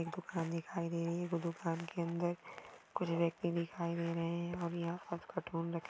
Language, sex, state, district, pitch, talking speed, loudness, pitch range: Hindi, female, Maharashtra, Aurangabad, 170 Hz, 185 wpm, -39 LUFS, 170-175 Hz